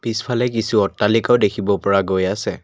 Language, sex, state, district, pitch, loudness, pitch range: Assamese, male, Assam, Kamrup Metropolitan, 105 Hz, -18 LUFS, 100-115 Hz